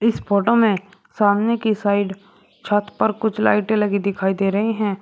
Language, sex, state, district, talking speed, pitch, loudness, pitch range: Hindi, male, Uttar Pradesh, Shamli, 165 wpm, 205 Hz, -19 LUFS, 200-220 Hz